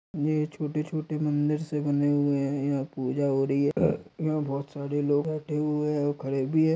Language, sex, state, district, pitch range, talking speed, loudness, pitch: Hindi, male, Maharashtra, Dhule, 140-150 Hz, 215 wpm, -28 LUFS, 145 Hz